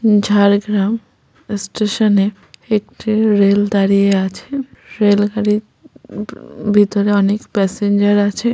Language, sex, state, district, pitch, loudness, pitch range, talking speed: Bengali, female, West Bengal, Jhargram, 205 Hz, -15 LUFS, 200-215 Hz, 90 wpm